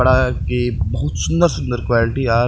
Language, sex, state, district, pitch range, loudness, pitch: Maithili, male, Bihar, Purnia, 105-125 Hz, -18 LUFS, 120 Hz